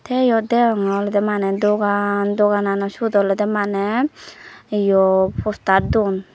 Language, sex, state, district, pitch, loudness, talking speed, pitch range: Chakma, female, Tripura, Dhalai, 205 Hz, -18 LUFS, 125 wpm, 200-210 Hz